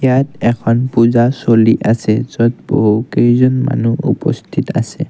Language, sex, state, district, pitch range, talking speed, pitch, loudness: Assamese, male, Assam, Kamrup Metropolitan, 115-130 Hz, 130 wpm, 120 Hz, -13 LUFS